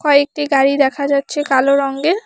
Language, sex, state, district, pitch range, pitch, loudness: Bengali, female, West Bengal, Alipurduar, 275-295 Hz, 280 Hz, -15 LUFS